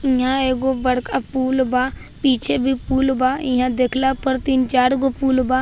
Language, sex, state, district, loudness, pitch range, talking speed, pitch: Hindi, male, Bihar, Vaishali, -18 LUFS, 255-265 Hz, 170 wpm, 260 Hz